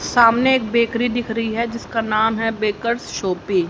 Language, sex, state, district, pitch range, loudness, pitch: Hindi, female, Haryana, Rohtak, 220-235 Hz, -19 LUFS, 230 Hz